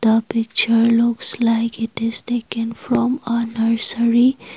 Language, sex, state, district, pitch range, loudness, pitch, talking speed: English, female, Assam, Kamrup Metropolitan, 230-235 Hz, -17 LUFS, 230 Hz, 130 wpm